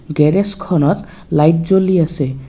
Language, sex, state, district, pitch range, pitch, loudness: Assamese, male, Assam, Kamrup Metropolitan, 150-190 Hz, 165 Hz, -15 LUFS